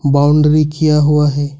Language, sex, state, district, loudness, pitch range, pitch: Hindi, male, Jharkhand, Ranchi, -12 LUFS, 145-150 Hz, 150 Hz